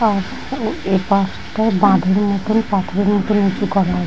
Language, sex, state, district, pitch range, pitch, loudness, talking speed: Bengali, female, West Bengal, Dakshin Dinajpur, 190-205 Hz, 200 Hz, -17 LUFS, 160 wpm